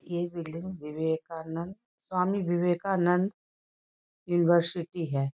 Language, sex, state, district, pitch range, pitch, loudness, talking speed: Hindi, female, West Bengal, North 24 Parganas, 165-180 Hz, 175 Hz, -29 LUFS, 80 wpm